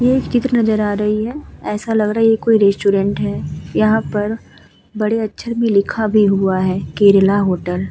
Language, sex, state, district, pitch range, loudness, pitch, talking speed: Hindi, female, Uttar Pradesh, Muzaffarnagar, 195-225 Hz, -16 LUFS, 210 Hz, 205 wpm